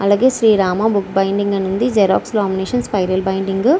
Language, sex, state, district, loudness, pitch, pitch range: Telugu, female, Andhra Pradesh, Srikakulam, -16 LUFS, 200 Hz, 190-220 Hz